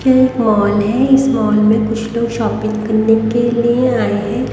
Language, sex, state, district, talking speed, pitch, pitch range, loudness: Hindi, female, Haryana, Rohtak, 200 wpm, 225 Hz, 215-240 Hz, -14 LUFS